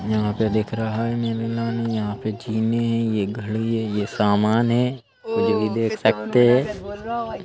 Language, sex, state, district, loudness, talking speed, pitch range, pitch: Hindi, male, Madhya Pradesh, Bhopal, -22 LUFS, 160 wpm, 110-115 Hz, 115 Hz